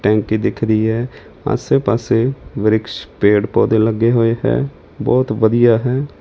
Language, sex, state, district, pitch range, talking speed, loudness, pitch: Punjabi, male, Punjab, Fazilka, 110-120 Hz, 135 wpm, -16 LUFS, 115 Hz